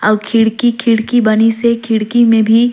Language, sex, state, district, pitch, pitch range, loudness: Surgujia, female, Chhattisgarh, Sarguja, 225 Hz, 220-235 Hz, -12 LUFS